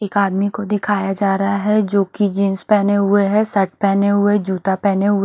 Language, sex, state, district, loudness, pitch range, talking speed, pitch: Hindi, female, Haryana, Charkhi Dadri, -17 LUFS, 195-205 Hz, 240 wpm, 200 Hz